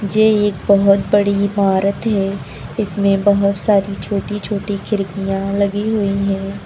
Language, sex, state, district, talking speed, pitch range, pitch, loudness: Hindi, female, Uttar Pradesh, Lucknow, 135 wpm, 195-205 Hz, 200 Hz, -17 LUFS